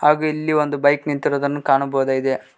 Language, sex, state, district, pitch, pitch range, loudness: Kannada, male, Karnataka, Koppal, 145 Hz, 135-150 Hz, -19 LUFS